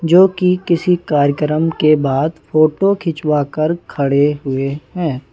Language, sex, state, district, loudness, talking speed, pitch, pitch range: Hindi, male, Madhya Pradesh, Bhopal, -15 LUFS, 135 wpm, 155 Hz, 145-170 Hz